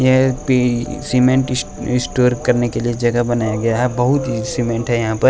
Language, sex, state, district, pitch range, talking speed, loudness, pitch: Hindi, male, Bihar, West Champaran, 120-130 Hz, 205 wpm, -17 LUFS, 125 Hz